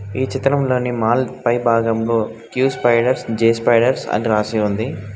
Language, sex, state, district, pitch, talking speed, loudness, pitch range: Telugu, male, Telangana, Hyderabad, 115 Hz, 140 wpm, -18 LUFS, 110-125 Hz